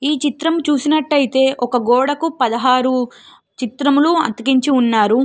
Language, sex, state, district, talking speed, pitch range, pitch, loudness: Telugu, female, Telangana, Nalgonda, 115 wpm, 245-295 Hz, 265 Hz, -16 LUFS